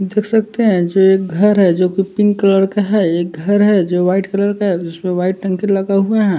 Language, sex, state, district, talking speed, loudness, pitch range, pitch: Hindi, male, Bihar, West Champaran, 245 wpm, -14 LUFS, 185-205 Hz, 195 Hz